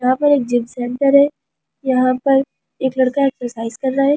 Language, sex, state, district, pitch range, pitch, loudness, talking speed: Hindi, female, Delhi, New Delhi, 250-275 Hz, 265 Hz, -17 LUFS, 215 wpm